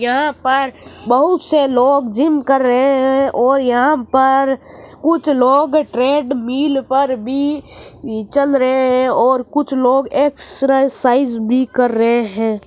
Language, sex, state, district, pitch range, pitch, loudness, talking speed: Marwari, female, Rajasthan, Nagaur, 250-280 Hz, 270 Hz, -15 LUFS, 135 wpm